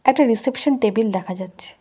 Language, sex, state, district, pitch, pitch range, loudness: Bengali, female, West Bengal, Cooch Behar, 225 Hz, 190-265 Hz, -20 LUFS